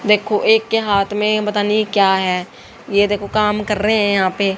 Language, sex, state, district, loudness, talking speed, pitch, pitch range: Hindi, female, Haryana, Rohtak, -16 LUFS, 225 wpm, 210 Hz, 200-215 Hz